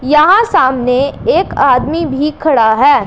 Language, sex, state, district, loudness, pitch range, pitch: Hindi, female, Punjab, Pathankot, -11 LUFS, 255-310 Hz, 290 Hz